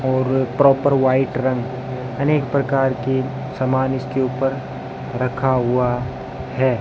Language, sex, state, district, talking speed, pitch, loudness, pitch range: Hindi, male, Rajasthan, Bikaner, 115 wpm, 130 Hz, -20 LUFS, 125-135 Hz